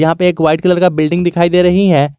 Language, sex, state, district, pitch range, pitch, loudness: Hindi, male, Jharkhand, Garhwa, 160-180 Hz, 175 Hz, -12 LUFS